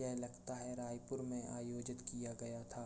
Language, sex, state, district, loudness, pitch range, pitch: Hindi, male, Uttar Pradesh, Jalaun, -46 LUFS, 120-125 Hz, 120 Hz